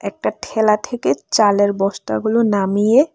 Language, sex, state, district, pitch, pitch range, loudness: Bengali, female, Tripura, West Tripura, 210 Hz, 200-225 Hz, -17 LUFS